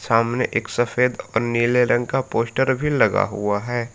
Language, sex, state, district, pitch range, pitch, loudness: Hindi, male, Jharkhand, Palamu, 115-125 Hz, 120 Hz, -20 LUFS